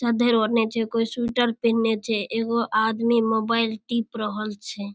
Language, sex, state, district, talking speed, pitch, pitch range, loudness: Maithili, female, Bihar, Darbhanga, 160 wpm, 230 Hz, 220-235 Hz, -23 LUFS